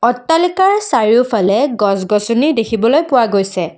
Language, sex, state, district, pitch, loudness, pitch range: Assamese, female, Assam, Kamrup Metropolitan, 230 Hz, -13 LUFS, 210-295 Hz